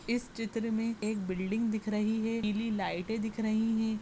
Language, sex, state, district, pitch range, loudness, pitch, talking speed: Hindi, female, Maharashtra, Sindhudurg, 210-225 Hz, -33 LUFS, 220 Hz, 195 wpm